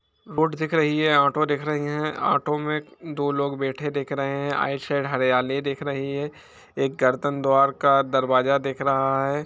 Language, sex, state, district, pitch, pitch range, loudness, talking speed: Hindi, male, Jharkhand, Jamtara, 140 Hz, 135-150 Hz, -23 LUFS, 185 wpm